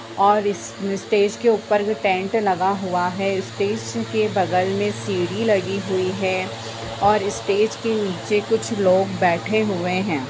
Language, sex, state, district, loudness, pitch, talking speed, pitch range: Hindi, female, Bihar, Begusarai, -21 LUFS, 195 Hz, 155 wpm, 185-210 Hz